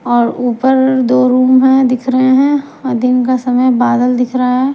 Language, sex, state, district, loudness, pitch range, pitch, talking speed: Hindi, female, Punjab, Kapurthala, -11 LUFS, 250-260 Hz, 255 Hz, 175 wpm